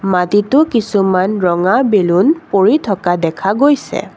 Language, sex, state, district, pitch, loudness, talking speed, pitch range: Assamese, female, Assam, Kamrup Metropolitan, 195 Hz, -13 LUFS, 115 wpm, 185-235 Hz